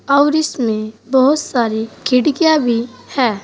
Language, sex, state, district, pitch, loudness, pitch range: Hindi, female, Uttar Pradesh, Saharanpur, 250 Hz, -16 LUFS, 230-285 Hz